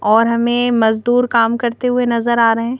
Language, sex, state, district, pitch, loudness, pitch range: Hindi, female, Madhya Pradesh, Bhopal, 235 Hz, -15 LUFS, 230-245 Hz